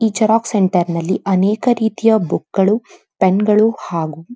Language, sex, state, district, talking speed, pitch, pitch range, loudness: Kannada, female, Karnataka, Dharwad, 165 wpm, 210 Hz, 185-220 Hz, -16 LUFS